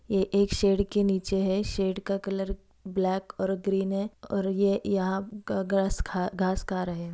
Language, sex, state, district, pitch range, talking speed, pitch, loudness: Hindi, female, Bihar, East Champaran, 190-200 Hz, 185 wpm, 195 Hz, -28 LUFS